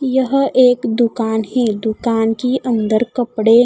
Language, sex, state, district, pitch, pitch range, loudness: Hindi, female, Odisha, Khordha, 235 Hz, 225-255 Hz, -16 LUFS